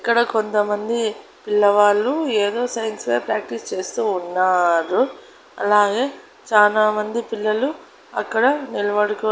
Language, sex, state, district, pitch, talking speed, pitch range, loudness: Telugu, female, Andhra Pradesh, Annamaya, 215 Hz, 90 wpm, 205-235 Hz, -20 LUFS